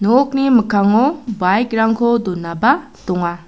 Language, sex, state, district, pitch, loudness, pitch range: Garo, female, Meghalaya, South Garo Hills, 225 Hz, -16 LUFS, 185-260 Hz